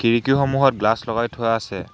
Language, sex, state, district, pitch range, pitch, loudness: Assamese, male, Assam, Hailakandi, 115-130 Hz, 115 Hz, -20 LUFS